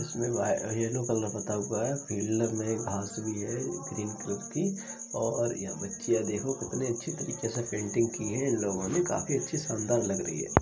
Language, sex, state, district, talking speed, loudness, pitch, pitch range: Hindi, male, Uttar Pradesh, Jalaun, 200 wpm, -31 LUFS, 115 Hz, 105-120 Hz